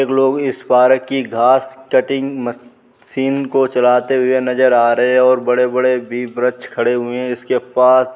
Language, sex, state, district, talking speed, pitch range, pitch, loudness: Hindi, male, Uttar Pradesh, Muzaffarnagar, 175 wpm, 125-130 Hz, 125 Hz, -15 LUFS